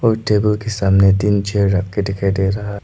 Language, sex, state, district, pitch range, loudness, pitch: Hindi, male, Arunachal Pradesh, Lower Dibang Valley, 95-105 Hz, -16 LUFS, 100 Hz